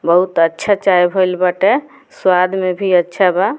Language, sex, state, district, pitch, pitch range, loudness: Bhojpuri, female, Bihar, Muzaffarpur, 185 Hz, 180-195 Hz, -14 LUFS